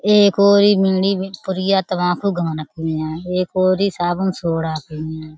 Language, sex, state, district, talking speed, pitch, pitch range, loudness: Hindi, female, Uttar Pradesh, Budaun, 65 wpm, 185 Hz, 160-195 Hz, -18 LUFS